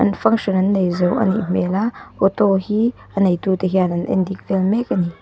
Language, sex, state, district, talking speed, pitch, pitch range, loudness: Mizo, female, Mizoram, Aizawl, 240 wpm, 190 Hz, 185-205 Hz, -18 LUFS